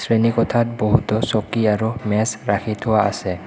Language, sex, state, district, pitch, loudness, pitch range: Assamese, male, Assam, Kamrup Metropolitan, 110 Hz, -19 LUFS, 105-115 Hz